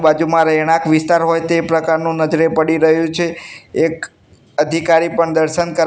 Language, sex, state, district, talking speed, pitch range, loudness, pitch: Gujarati, male, Gujarat, Gandhinagar, 155 wpm, 160-165 Hz, -15 LUFS, 165 Hz